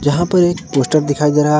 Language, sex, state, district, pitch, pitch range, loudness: Hindi, male, Jharkhand, Garhwa, 150 Hz, 145-175 Hz, -15 LUFS